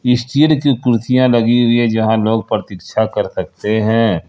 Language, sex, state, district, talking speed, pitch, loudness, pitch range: Hindi, male, Jharkhand, Ranchi, 85 wpm, 120 Hz, -15 LUFS, 110-125 Hz